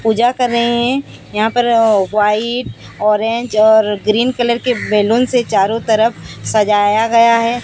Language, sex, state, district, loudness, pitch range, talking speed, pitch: Hindi, female, Odisha, Sambalpur, -14 LUFS, 210-240 Hz, 150 wpm, 225 Hz